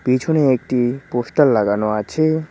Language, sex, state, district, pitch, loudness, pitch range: Bengali, male, West Bengal, Cooch Behar, 130 Hz, -18 LUFS, 120-150 Hz